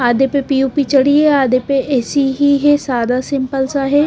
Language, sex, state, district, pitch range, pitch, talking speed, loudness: Hindi, female, Punjab, Pathankot, 265-285 Hz, 275 Hz, 205 wpm, -14 LUFS